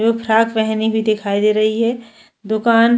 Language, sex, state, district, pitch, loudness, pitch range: Hindi, female, Chhattisgarh, Jashpur, 220 Hz, -16 LUFS, 215-230 Hz